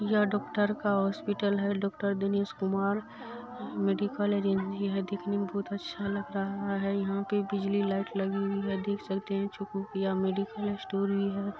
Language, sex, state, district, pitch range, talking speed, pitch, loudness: Maithili, female, Bihar, Supaul, 195-205 Hz, 180 wpm, 200 Hz, -31 LUFS